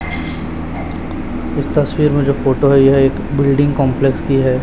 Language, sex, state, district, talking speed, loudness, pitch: Hindi, male, Chhattisgarh, Raipur, 155 wpm, -15 LUFS, 135 Hz